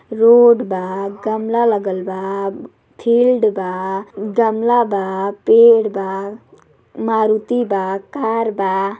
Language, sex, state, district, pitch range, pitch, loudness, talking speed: Bhojpuri, female, Uttar Pradesh, Deoria, 195-230 Hz, 215 Hz, -16 LUFS, 100 wpm